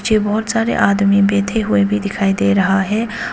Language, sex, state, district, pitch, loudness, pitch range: Hindi, female, Arunachal Pradesh, Papum Pare, 200 Hz, -15 LUFS, 195-220 Hz